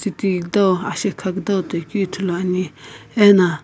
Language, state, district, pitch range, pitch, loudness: Sumi, Nagaland, Kohima, 175-200 Hz, 185 Hz, -19 LUFS